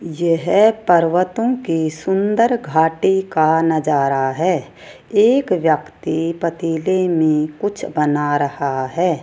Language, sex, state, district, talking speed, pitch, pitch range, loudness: Hindi, female, Rajasthan, Jaipur, 105 wpm, 165 Hz, 155-190 Hz, -17 LUFS